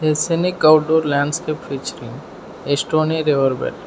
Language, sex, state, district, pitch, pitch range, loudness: English, male, Arunachal Pradesh, Lower Dibang Valley, 155 Hz, 145-160 Hz, -18 LUFS